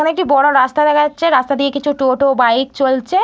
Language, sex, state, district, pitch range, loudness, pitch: Bengali, female, West Bengal, Malda, 265-300 Hz, -14 LUFS, 280 Hz